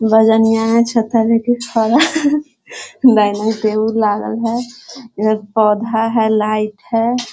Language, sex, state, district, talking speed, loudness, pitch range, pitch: Hindi, female, Bihar, Sitamarhi, 125 wpm, -15 LUFS, 215-240 Hz, 225 Hz